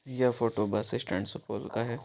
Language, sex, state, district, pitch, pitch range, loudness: Maithili, male, Bihar, Supaul, 115 Hz, 105-125 Hz, -32 LUFS